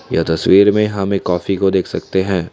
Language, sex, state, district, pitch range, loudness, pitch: Hindi, male, Assam, Kamrup Metropolitan, 90-100 Hz, -15 LUFS, 95 Hz